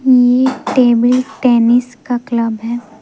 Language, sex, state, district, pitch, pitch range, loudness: Hindi, female, Madhya Pradesh, Umaria, 245 Hz, 235-250 Hz, -13 LUFS